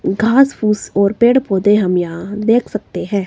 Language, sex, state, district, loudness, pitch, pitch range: Hindi, female, Himachal Pradesh, Shimla, -15 LUFS, 210 Hz, 200-235 Hz